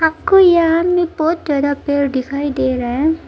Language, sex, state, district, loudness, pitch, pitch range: Hindi, female, Arunachal Pradesh, Lower Dibang Valley, -15 LUFS, 310 Hz, 280-335 Hz